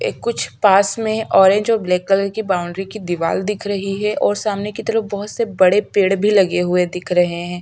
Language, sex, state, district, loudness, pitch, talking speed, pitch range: Hindi, female, Chhattisgarh, Sukma, -17 LUFS, 200 Hz, 230 wpm, 180-210 Hz